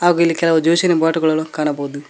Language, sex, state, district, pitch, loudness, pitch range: Kannada, male, Karnataka, Koppal, 160 Hz, -16 LUFS, 155-170 Hz